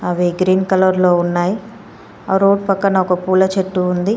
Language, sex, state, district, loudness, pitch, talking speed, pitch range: Telugu, female, Telangana, Komaram Bheem, -15 LUFS, 190 Hz, 160 wpm, 180-195 Hz